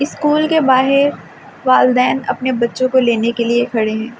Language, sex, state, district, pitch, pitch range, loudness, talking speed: Hindi, female, Delhi, New Delhi, 255 Hz, 235-270 Hz, -15 LUFS, 170 wpm